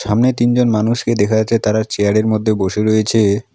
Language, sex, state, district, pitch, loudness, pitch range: Bengali, male, West Bengal, Alipurduar, 110 Hz, -15 LUFS, 105-115 Hz